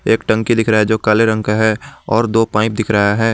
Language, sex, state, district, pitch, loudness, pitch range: Hindi, male, Jharkhand, Garhwa, 110 Hz, -15 LUFS, 110-115 Hz